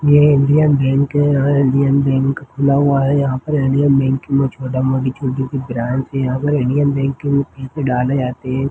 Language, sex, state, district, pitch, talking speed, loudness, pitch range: Hindi, male, Chhattisgarh, Jashpur, 135 Hz, 200 wpm, -16 LUFS, 130-140 Hz